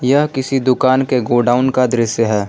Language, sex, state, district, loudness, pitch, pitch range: Hindi, male, Jharkhand, Palamu, -15 LUFS, 130 Hz, 120-130 Hz